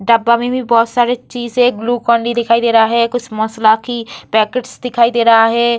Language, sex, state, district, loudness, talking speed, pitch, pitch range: Hindi, female, Bihar, Vaishali, -13 LUFS, 215 wpm, 235 Hz, 230-240 Hz